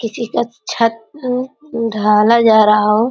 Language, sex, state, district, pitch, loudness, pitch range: Hindi, female, Uttar Pradesh, Ghazipur, 230 Hz, -14 LUFS, 215-240 Hz